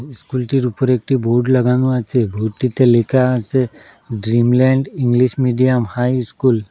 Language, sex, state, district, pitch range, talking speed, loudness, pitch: Bengali, male, Assam, Hailakandi, 120-130 Hz, 135 wpm, -16 LUFS, 125 Hz